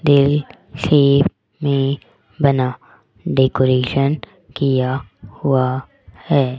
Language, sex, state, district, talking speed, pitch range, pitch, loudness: Hindi, female, Rajasthan, Jaipur, 55 wpm, 130-145 Hz, 135 Hz, -18 LUFS